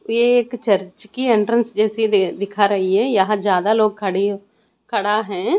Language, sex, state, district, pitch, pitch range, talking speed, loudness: Hindi, female, Chandigarh, Chandigarh, 210 Hz, 200-225 Hz, 160 wpm, -18 LUFS